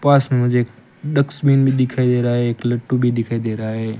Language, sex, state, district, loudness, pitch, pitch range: Hindi, male, Rajasthan, Bikaner, -18 LUFS, 125 Hz, 120-135 Hz